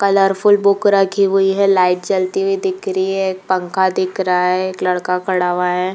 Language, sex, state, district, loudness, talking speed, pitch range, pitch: Hindi, female, Uttar Pradesh, Jalaun, -16 LUFS, 210 wpm, 180-200 Hz, 190 Hz